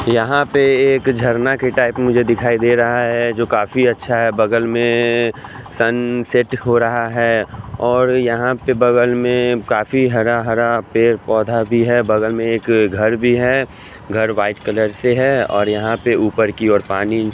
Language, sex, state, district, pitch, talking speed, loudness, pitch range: Hindi, male, Chandigarh, Chandigarh, 120 Hz, 180 wpm, -16 LUFS, 110-125 Hz